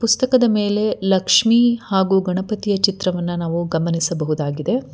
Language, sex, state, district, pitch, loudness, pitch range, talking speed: Kannada, female, Karnataka, Bangalore, 190 Hz, -18 LUFS, 175-220 Hz, 95 wpm